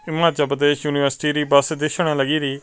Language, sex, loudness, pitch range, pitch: Punjabi, male, -19 LUFS, 140-155 Hz, 150 Hz